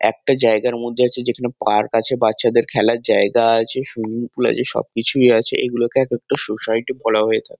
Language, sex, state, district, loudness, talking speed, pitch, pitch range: Bengali, male, West Bengal, Kolkata, -17 LUFS, 175 wpm, 115 Hz, 110-120 Hz